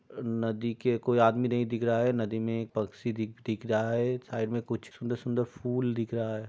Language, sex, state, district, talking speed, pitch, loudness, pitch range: Hindi, male, Uttar Pradesh, Jyotiba Phule Nagar, 250 wpm, 115 Hz, -30 LUFS, 110-120 Hz